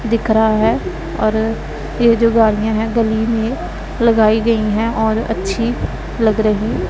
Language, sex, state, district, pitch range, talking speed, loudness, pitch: Hindi, female, Punjab, Pathankot, 220-230 Hz, 150 wpm, -16 LUFS, 220 Hz